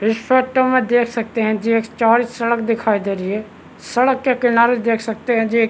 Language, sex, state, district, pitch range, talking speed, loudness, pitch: Hindi, male, Chhattisgarh, Balrampur, 225-245 Hz, 220 wpm, -17 LUFS, 230 Hz